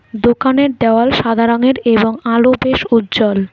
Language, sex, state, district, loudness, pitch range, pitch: Bengali, female, West Bengal, Alipurduar, -13 LUFS, 225-255 Hz, 230 Hz